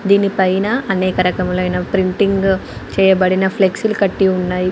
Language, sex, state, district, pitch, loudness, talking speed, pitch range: Telugu, female, Andhra Pradesh, Anantapur, 190 Hz, -16 LUFS, 115 wpm, 185-195 Hz